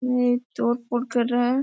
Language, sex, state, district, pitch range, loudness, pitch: Hindi, female, Bihar, Gaya, 240-250 Hz, -24 LUFS, 245 Hz